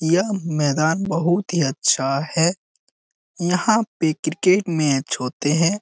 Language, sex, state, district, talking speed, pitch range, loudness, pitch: Hindi, male, Bihar, Jamui, 125 wpm, 150-180 Hz, -20 LUFS, 165 Hz